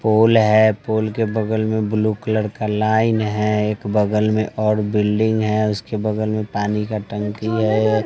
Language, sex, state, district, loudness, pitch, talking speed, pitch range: Hindi, male, Bihar, West Champaran, -19 LUFS, 110 Hz, 180 wpm, 105-110 Hz